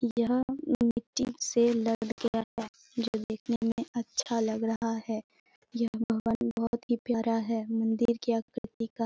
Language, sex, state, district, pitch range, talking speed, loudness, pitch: Hindi, female, Bihar, Purnia, 225-235 Hz, 150 wpm, -31 LUFS, 230 Hz